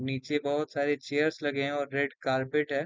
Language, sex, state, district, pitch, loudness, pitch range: Hindi, male, Uttar Pradesh, Varanasi, 145 Hz, -30 LUFS, 140-145 Hz